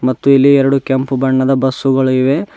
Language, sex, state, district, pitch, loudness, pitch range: Kannada, male, Karnataka, Bidar, 135 Hz, -12 LUFS, 130-135 Hz